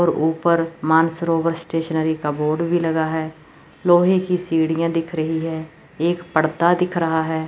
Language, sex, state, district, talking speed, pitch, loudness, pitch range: Hindi, female, Chandigarh, Chandigarh, 160 wpm, 165 Hz, -20 LUFS, 160-170 Hz